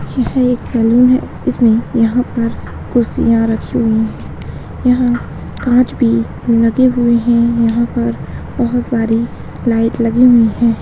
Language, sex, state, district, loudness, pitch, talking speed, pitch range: Hindi, female, Bihar, Purnia, -14 LUFS, 235 Hz, 140 wpm, 230-245 Hz